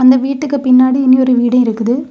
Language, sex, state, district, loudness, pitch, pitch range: Tamil, female, Tamil Nadu, Kanyakumari, -11 LUFS, 255 Hz, 250-265 Hz